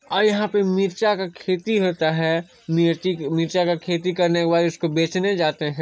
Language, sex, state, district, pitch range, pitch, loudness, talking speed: Hindi, male, Chhattisgarh, Sarguja, 165-190 Hz, 175 Hz, -21 LUFS, 185 wpm